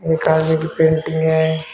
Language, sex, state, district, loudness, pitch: Hindi, male, Uttar Pradesh, Shamli, -17 LUFS, 160 Hz